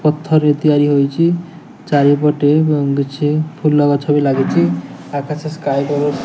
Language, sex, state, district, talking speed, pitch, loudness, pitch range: Odia, male, Odisha, Nuapada, 135 wpm, 145 Hz, -15 LUFS, 140-155 Hz